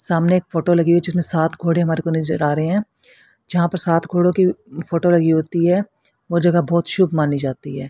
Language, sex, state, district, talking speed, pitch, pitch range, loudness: Hindi, female, Haryana, Rohtak, 235 wpm, 170 Hz, 160-175 Hz, -17 LUFS